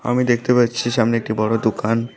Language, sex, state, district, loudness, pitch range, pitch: Bengali, female, West Bengal, Alipurduar, -18 LUFS, 115-120 Hz, 115 Hz